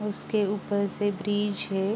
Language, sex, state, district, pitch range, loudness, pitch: Hindi, female, Uttar Pradesh, Jalaun, 200-210 Hz, -28 LUFS, 205 Hz